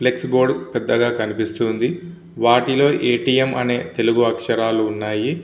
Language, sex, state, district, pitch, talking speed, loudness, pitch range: Telugu, male, Andhra Pradesh, Visakhapatnam, 120 Hz, 145 wpm, -19 LUFS, 115-130 Hz